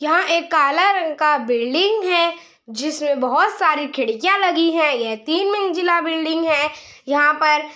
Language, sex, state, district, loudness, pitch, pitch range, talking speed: Hindi, female, Bihar, Araria, -18 LUFS, 315 Hz, 295-350 Hz, 160 wpm